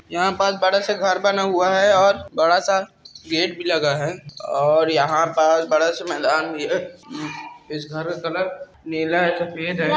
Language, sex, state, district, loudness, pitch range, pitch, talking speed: Hindi, female, Bihar, Saran, -20 LUFS, 160-190 Hz, 175 Hz, 185 wpm